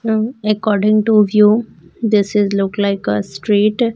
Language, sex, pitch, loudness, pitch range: English, female, 210 Hz, -15 LUFS, 205-220 Hz